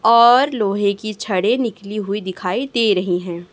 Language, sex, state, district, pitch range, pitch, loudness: Hindi, female, Chhattisgarh, Raipur, 185-230 Hz, 205 Hz, -18 LUFS